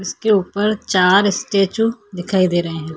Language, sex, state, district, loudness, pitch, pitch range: Hindi, female, Chhattisgarh, Korba, -17 LUFS, 195 Hz, 180-210 Hz